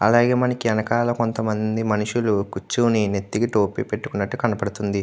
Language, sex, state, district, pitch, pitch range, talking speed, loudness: Telugu, male, Andhra Pradesh, Krishna, 110 Hz, 100-120 Hz, 130 wpm, -22 LUFS